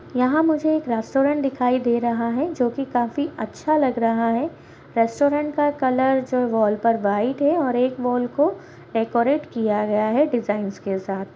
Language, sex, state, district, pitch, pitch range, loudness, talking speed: Hindi, female, Bihar, Kishanganj, 250 Hz, 230-285 Hz, -21 LUFS, 180 wpm